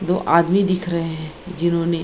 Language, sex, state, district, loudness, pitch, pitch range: Hindi, female, Bihar, Gaya, -19 LUFS, 170 Hz, 170-180 Hz